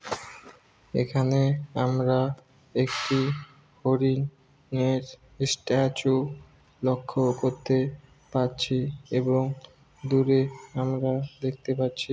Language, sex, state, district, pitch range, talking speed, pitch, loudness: Bengali, male, West Bengal, Malda, 130-135 Hz, 70 wpm, 130 Hz, -27 LUFS